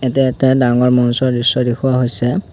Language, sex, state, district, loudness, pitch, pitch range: Assamese, male, Assam, Kamrup Metropolitan, -14 LUFS, 125 Hz, 125-130 Hz